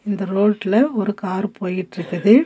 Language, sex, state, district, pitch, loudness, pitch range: Tamil, female, Tamil Nadu, Nilgiris, 200 Hz, -20 LUFS, 185-210 Hz